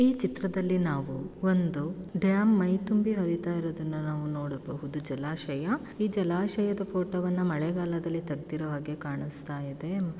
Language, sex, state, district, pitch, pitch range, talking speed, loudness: Kannada, female, Karnataka, Shimoga, 170 Hz, 150-190 Hz, 130 wpm, -30 LUFS